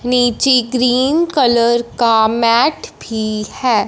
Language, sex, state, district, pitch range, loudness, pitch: Hindi, female, Punjab, Fazilka, 230-250 Hz, -14 LUFS, 240 Hz